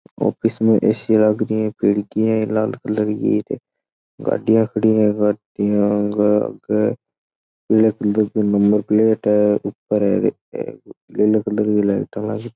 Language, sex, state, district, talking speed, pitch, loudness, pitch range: Marwari, male, Rajasthan, Churu, 90 wpm, 105 Hz, -18 LUFS, 105-110 Hz